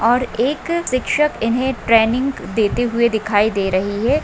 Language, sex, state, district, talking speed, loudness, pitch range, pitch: Hindi, female, Maharashtra, Solapur, 155 wpm, -18 LUFS, 220-260 Hz, 235 Hz